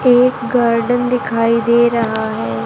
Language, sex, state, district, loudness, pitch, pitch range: Hindi, female, Haryana, Charkhi Dadri, -15 LUFS, 235 Hz, 230-245 Hz